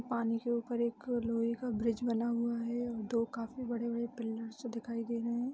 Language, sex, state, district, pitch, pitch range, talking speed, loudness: Hindi, female, Bihar, Samastipur, 235 Hz, 230-235 Hz, 215 wpm, -36 LUFS